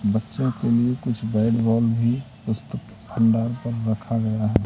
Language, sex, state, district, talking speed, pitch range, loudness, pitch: Hindi, male, Madhya Pradesh, Katni, 130 wpm, 110-120 Hz, -23 LUFS, 115 Hz